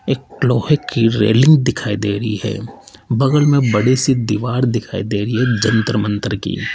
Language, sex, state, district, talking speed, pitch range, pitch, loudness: Hindi, male, Rajasthan, Jaipur, 185 wpm, 105-125 Hz, 115 Hz, -16 LUFS